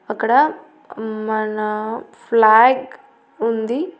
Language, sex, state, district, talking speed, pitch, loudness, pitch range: Telugu, female, Andhra Pradesh, Annamaya, 60 wpm, 220 Hz, -17 LUFS, 215-230 Hz